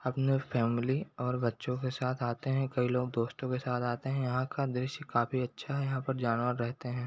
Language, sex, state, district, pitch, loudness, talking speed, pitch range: Hindi, male, Chhattisgarh, Rajnandgaon, 125 Hz, -33 LUFS, 230 wpm, 125-135 Hz